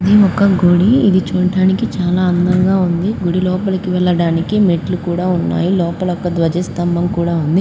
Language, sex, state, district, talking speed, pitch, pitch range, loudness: Telugu, female, Andhra Pradesh, Krishna, 155 wpm, 180 Hz, 175-185 Hz, -14 LUFS